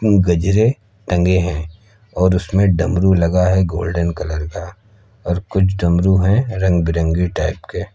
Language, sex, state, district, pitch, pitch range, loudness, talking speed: Hindi, male, Uttar Pradesh, Lucknow, 90 Hz, 85-100 Hz, -17 LUFS, 145 wpm